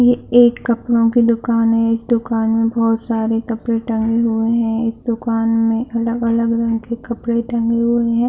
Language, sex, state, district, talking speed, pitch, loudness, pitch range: Hindi, female, Bihar, Saharsa, 190 wpm, 230 Hz, -17 LUFS, 225-235 Hz